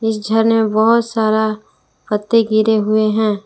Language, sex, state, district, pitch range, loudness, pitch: Hindi, female, Jharkhand, Palamu, 215-225 Hz, -15 LUFS, 220 Hz